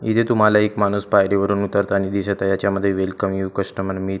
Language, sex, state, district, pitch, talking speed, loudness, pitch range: Marathi, male, Maharashtra, Gondia, 100 Hz, 215 wpm, -19 LUFS, 95-100 Hz